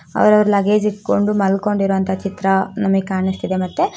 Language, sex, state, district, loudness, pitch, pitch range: Kannada, female, Karnataka, Shimoga, -17 LUFS, 195 Hz, 190-210 Hz